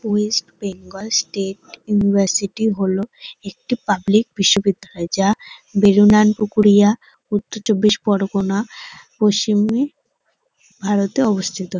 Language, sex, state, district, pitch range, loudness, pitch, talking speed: Bengali, female, West Bengal, North 24 Parganas, 195-215 Hz, -17 LUFS, 205 Hz, 85 wpm